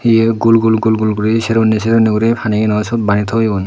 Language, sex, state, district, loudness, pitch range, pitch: Chakma, male, Tripura, Dhalai, -13 LUFS, 110-115 Hz, 110 Hz